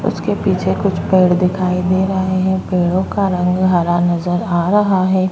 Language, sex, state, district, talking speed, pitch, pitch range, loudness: Hindi, female, Goa, North and South Goa, 180 wpm, 185 Hz, 180-190 Hz, -16 LUFS